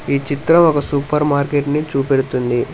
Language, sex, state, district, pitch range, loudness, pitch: Telugu, male, Telangana, Hyderabad, 135-150 Hz, -16 LUFS, 140 Hz